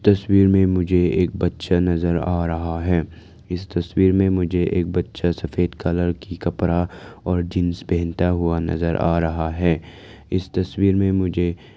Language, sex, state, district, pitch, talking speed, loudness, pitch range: Hindi, male, Arunachal Pradesh, Lower Dibang Valley, 90 Hz, 160 wpm, -21 LUFS, 85-95 Hz